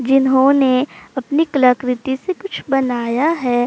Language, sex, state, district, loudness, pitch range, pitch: Hindi, female, Uttar Pradesh, Jalaun, -16 LUFS, 250-280 Hz, 265 Hz